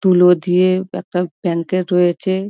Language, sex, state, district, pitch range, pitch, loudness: Bengali, female, West Bengal, Dakshin Dinajpur, 180-185 Hz, 180 Hz, -16 LUFS